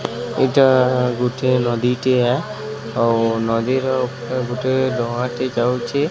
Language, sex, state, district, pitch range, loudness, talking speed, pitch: Odia, male, Odisha, Sambalpur, 120-130 Hz, -19 LUFS, 120 wpm, 125 Hz